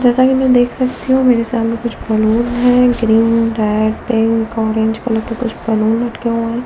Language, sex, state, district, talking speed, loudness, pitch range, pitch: Hindi, female, Delhi, New Delhi, 200 wpm, -14 LUFS, 225-245 Hz, 230 Hz